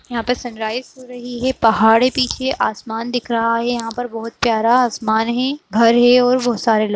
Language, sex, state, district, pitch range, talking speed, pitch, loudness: Kumaoni, female, Uttarakhand, Uttarkashi, 225-250 Hz, 225 wpm, 240 Hz, -17 LUFS